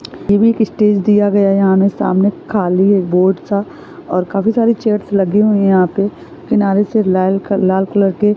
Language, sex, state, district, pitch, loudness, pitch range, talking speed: Hindi, female, Chhattisgarh, Sarguja, 200 Hz, -14 LUFS, 190-210 Hz, 210 wpm